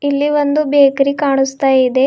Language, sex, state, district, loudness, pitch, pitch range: Kannada, female, Karnataka, Bidar, -13 LUFS, 280 Hz, 270-290 Hz